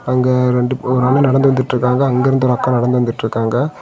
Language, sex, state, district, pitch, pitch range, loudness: Tamil, male, Tamil Nadu, Kanyakumari, 125 Hz, 125-130 Hz, -15 LUFS